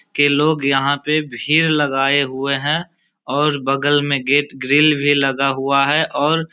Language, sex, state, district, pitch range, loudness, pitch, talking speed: Hindi, male, Bihar, Samastipur, 140-150 Hz, -16 LUFS, 145 Hz, 175 wpm